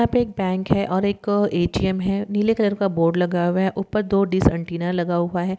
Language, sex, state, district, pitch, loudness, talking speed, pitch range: Hindi, female, Andhra Pradesh, Guntur, 190 Hz, -21 LUFS, 245 wpm, 175-200 Hz